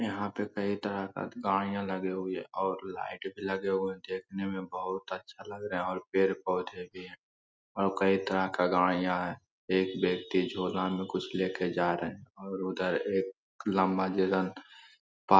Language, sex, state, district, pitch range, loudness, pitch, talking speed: Hindi, male, Bihar, Lakhisarai, 90-95 Hz, -32 LUFS, 95 Hz, 185 wpm